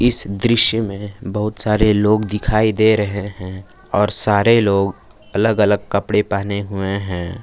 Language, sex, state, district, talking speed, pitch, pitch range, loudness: Hindi, male, Jharkhand, Palamu, 155 wpm, 105 Hz, 100-110 Hz, -16 LUFS